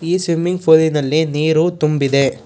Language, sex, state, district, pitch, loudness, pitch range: Kannada, male, Karnataka, Bangalore, 160 Hz, -15 LUFS, 145-165 Hz